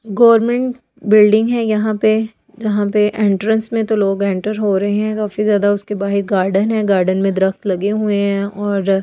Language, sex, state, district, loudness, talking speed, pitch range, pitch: Hindi, female, Delhi, New Delhi, -16 LUFS, 185 wpm, 200-215 Hz, 210 Hz